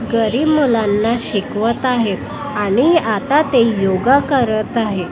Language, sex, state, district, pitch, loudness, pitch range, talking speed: Marathi, female, Maharashtra, Washim, 230 Hz, -16 LUFS, 215-260 Hz, 115 wpm